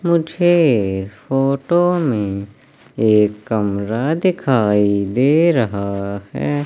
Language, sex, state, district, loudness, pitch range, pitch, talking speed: Hindi, male, Madhya Pradesh, Katni, -17 LUFS, 100-155 Hz, 115 Hz, 90 wpm